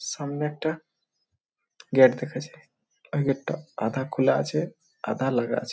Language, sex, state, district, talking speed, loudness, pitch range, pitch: Bengali, male, West Bengal, Malda, 145 wpm, -26 LUFS, 130-155 Hz, 145 Hz